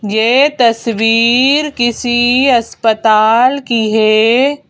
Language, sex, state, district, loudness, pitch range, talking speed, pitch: Hindi, female, Madhya Pradesh, Bhopal, -11 LUFS, 225-255 Hz, 75 wpm, 235 Hz